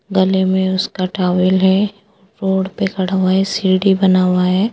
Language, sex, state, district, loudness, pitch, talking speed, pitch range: Hindi, female, Bihar, East Champaran, -15 LUFS, 190 Hz, 175 wpm, 185-195 Hz